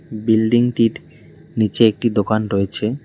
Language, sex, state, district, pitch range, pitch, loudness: Bengali, male, West Bengal, Cooch Behar, 110-120 Hz, 110 Hz, -17 LUFS